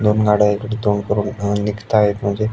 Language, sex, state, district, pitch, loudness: Marathi, male, Maharashtra, Aurangabad, 105 Hz, -18 LUFS